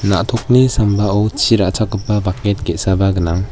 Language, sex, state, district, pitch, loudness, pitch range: Garo, male, Meghalaya, West Garo Hills, 100 Hz, -15 LUFS, 95-110 Hz